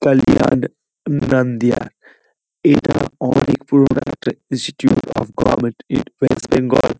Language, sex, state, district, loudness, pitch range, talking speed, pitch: Bengali, male, West Bengal, Kolkata, -17 LUFS, 120-140 Hz, 110 wpm, 135 Hz